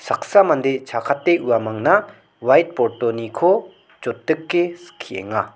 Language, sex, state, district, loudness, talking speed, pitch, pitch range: Garo, male, Meghalaya, South Garo Hills, -19 LUFS, 75 wpm, 135 Hz, 115-175 Hz